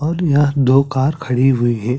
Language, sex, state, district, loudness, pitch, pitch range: Hindi, male, Chhattisgarh, Sarguja, -15 LUFS, 135 Hz, 125-145 Hz